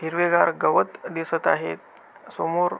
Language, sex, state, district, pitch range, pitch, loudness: Marathi, male, Maharashtra, Aurangabad, 165-175 Hz, 165 Hz, -23 LUFS